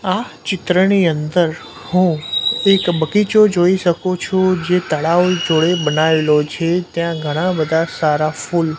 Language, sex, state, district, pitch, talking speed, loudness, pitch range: Gujarati, male, Gujarat, Gandhinagar, 175 Hz, 130 wpm, -16 LUFS, 160-185 Hz